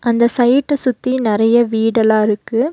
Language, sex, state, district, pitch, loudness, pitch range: Tamil, female, Tamil Nadu, Nilgiris, 235 Hz, -15 LUFS, 225-255 Hz